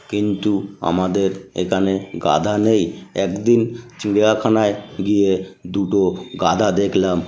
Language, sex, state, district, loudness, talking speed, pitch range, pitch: Bengali, male, West Bengal, North 24 Parganas, -19 LUFS, 90 wpm, 95-105 Hz, 100 Hz